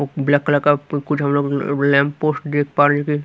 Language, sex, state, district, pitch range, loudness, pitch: Hindi, male, Haryana, Rohtak, 140-145 Hz, -18 LUFS, 145 Hz